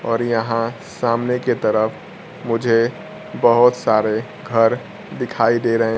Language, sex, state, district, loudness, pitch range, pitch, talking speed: Hindi, male, Bihar, Kaimur, -18 LUFS, 115-120 Hz, 115 Hz, 120 wpm